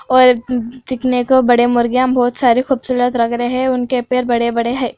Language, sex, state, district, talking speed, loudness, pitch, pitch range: Hindi, female, Andhra Pradesh, Anantapur, 190 wpm, -15 LUFS, 250 Hz, 240-255 Hz